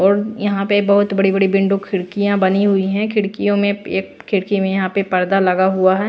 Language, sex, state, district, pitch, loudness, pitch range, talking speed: Hindi, female, Bihar, Patna, 195 Hz, -17 LUFS, 190-205 Hz, 205 wpm